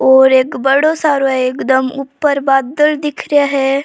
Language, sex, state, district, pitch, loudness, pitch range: Rajasthani, female, Rajasthan, Churu, 275 Hz, -13 LUFS, 265-290 Hz